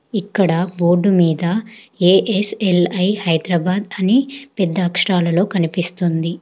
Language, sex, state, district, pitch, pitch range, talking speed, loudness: Telugu, female, Telangana, Hyderabad, 185 Hz, 175-205 Hz, 95 wpm, -17 LUFS